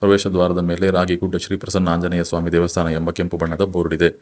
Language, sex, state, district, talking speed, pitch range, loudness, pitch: Kannada, male, Karnataka, Bangalore, 200 wpm, 85-95 Hz, -19 LUFS, 90 Hz